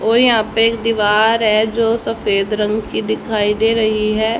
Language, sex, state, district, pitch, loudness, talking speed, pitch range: Hindi, female, Haryana, Rohtak, 220 Hz, -15 LUFS, 190 wpm, 210-225 Hz